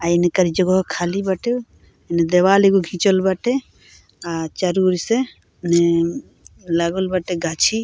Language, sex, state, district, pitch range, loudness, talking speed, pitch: Bhojpuri, female, Bihar, Muzaffarpur, 170-195 Hz, -19 LUFS, 140 wpm, 185 Hz